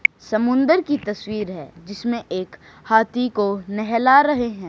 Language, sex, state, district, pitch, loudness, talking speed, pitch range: Hindi, male, Haryana, Charkhi Dadri, 220 Hz, -20 LUFS, 140 wpm, 205-250 Hz